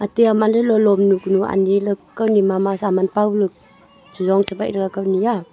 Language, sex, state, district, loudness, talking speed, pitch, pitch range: Wancho, female, Arunachal Pradesh, Longding, -18 LUFS, 175 wpm, 200 Hz, 195-210 Hz